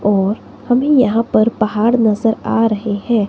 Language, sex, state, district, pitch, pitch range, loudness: Hindi, female, Himachal Pradesh, Shimla, 225 Hz, 210-235 Hz, -15 LUFS